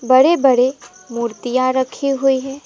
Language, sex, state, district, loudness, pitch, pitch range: Hindi, female, West Bengal, Alipurduar, -16 LUFS, 260 Hz, 245-270 Hz